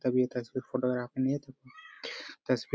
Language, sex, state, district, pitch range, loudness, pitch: Hindi, male, Jharkhand, Jamtara, 125-130 Hz, -33 LUFS, 125 Hz